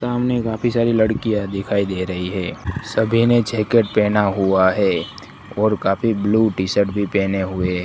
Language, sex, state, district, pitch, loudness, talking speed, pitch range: Hindi, male, Gujarat, Gandhinagar, 105 Hz, -19 LUFS, 170 wpm, 95-115 Hz